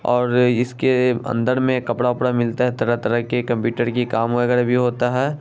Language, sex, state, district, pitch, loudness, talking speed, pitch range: Hindi, male, Bihar, Saharsa, 125 Hz, -19 LUFS, 200 wpm, 120-125 Hz